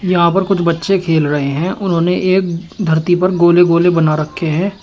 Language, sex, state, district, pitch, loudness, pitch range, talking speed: Hindi, male, Uttar Pradesh, Shamli, 175 Hz, -14 LUFS, 165-185 Hz, 200 wpm